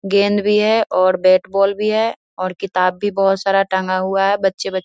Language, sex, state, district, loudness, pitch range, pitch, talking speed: Hindi, female, Bihar, Vaishali, -17 LUFS, 185-205 Hz, 195 Hz, 235 wpm